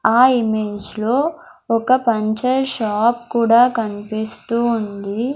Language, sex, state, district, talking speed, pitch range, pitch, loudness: Telugu, male, Andhra Pradesh, Sri Satya Sai, 100 wpm, 215-250 Hz, 230 Hz, -18 LUFS